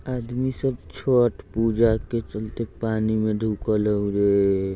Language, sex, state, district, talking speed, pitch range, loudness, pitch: Bajjika, male, Bihar, Vaishali, 140 wpm, 105-120 Hz, -23 LUFS, 110 Hz